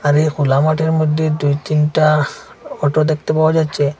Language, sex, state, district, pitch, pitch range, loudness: Bengali, male, Assam, Hailakandi, 155 Hz, 145-155 Hz, -16 LUFS